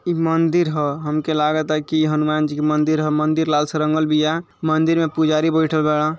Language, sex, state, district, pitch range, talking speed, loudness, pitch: Bhojpuri, male, Uttar Pradesh, Ghazipur, 155-160 Hz, 205 wpm, -19 LUFS, 155 Hz